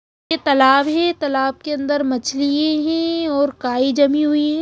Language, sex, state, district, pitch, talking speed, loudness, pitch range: Hindi, female, Bihar, Katihar, 290 Hz, 170 wpm, -18 LUFS, 275-310 Hz